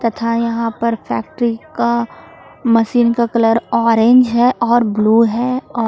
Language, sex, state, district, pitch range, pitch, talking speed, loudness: Hindi, female, Jharkhand, Palamu, 230-240 Hz, 235 Hz, 145 wpm, -15 LUFS